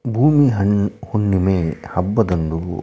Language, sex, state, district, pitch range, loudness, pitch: Kannada, male, Karnataka, Shimoga, 90-115 Hz, -18 LUFS, 100 Hz